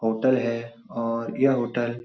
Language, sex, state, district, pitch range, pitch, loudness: Hindi, male, Bihar, Supaul, 115-120 Hz, 115 Hz, -25 LUFS